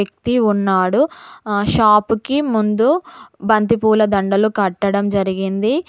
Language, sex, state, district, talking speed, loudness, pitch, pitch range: Telugu, female, Telangana, Mahabubabad, 100 wpm, -16 LUFS, 210 Hz, 200-230 Hz